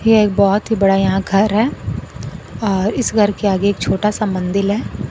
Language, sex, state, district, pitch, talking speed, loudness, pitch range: Hindi, female, Bihar, Kaimur, 205 Hz, 210 wpm, -16 LUFS, 195-215 Hz